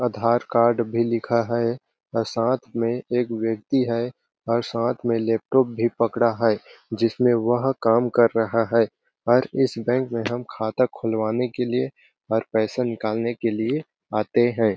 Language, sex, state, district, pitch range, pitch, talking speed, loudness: Hindi, male, Chhattisgarh, Balrampur, 115-120 Hz, 115 Hz, 165 wpm, -23 LUFS